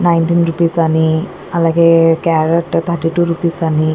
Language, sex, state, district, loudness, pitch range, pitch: Telugu, female, Andhra Pradesh, Guntur, -13 LUFS, 165-170 Hz, 165 Hz